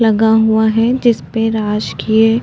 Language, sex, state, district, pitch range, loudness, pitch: Hindi, female, Uttarakhand, Tehri Garhwal, 220-225 Hz, -14 LUFS, 220 Hz